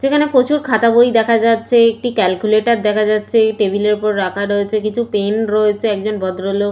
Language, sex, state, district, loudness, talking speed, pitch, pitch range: Bengali, female, West Bengal, Malda, -15 LUFS, 180 wpm, 215 Hz, 205-230 Hz